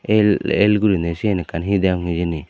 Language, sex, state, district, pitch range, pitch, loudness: Chakma, male, Tripura, Dhalai, 85-105 Hz, 95 Hz, -18 LUFS